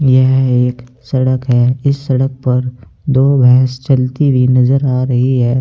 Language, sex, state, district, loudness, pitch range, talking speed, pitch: Hindi, male, Uttar Pradesh, Saharanpur, -12 LUFS, 125-135 Hz, 160 wpm, 130 Hz